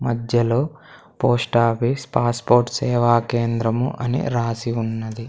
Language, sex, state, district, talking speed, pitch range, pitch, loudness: Telugu, male, Andhra Pradesh, Sri Satya Sai, 100 wpm, 115-120 Hz, 120 Hz, -20 LUFS